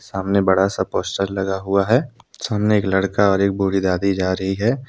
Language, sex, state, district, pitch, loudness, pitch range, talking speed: Hindi, male, Jharkhand, Deoghar, 100 Hz, -19 LUFS, 95-105 Hz, 210 wpm